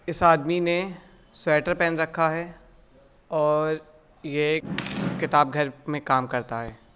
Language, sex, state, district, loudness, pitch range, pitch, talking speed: Hindi, male, Uttar Pradesh, Budaun, -25 LUFS, 145-170 Hz, 155 Hz, 140 wpm